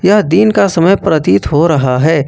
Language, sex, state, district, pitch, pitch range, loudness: Hindi, male, Jharkhand, Ranchi, 165 Hz, 145-200 Hz, -10 LUFS